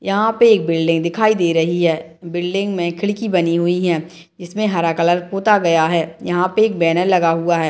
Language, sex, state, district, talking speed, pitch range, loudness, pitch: Hindi, female, Bihar, Madhepura, 210 wpm, 165-195 Hz, -17 LUFS, 175 Hz